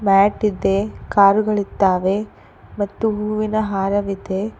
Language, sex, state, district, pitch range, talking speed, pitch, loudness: Kannada, female, Karnataka, Koppal, 195-215 Hz, 65 wpm, 205 Hz, -19 LUFS